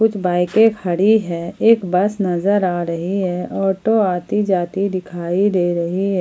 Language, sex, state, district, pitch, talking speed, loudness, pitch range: Hindi, female, Jharkhand, Ranchi, 185 Hz, 165 wpm, -18 LUFS, 175-205 Hz